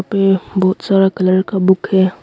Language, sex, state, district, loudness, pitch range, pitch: Hindi, male, Arunachal Pradesh, Longding, -14 LUFS, 185-195 Hz, 190 Hz